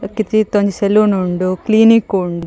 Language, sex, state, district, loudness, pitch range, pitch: Tulu, female, Karnataka, Dakshina Kannada, -14 LUFS, 185-215 Hz, 200 Hz